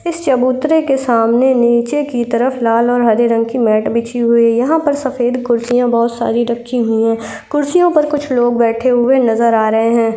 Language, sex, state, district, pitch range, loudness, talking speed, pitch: Hindi, female, Uttar Pradesh, Etah, 230-265 Hz, -13 LUFS, 210 wpm, 240 Hz